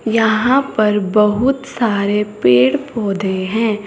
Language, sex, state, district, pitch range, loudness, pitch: Hindi, female, Uttar Pradesh, Saharanpur, 205-230 Hz, -15 LUFS, 215 Hz